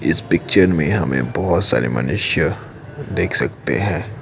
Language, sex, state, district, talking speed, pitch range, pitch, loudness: Hindi, male, Assam, Kamrup Metropolitan, 140 wpm, 65-100 Hz, 85 Hz, -18 LUFS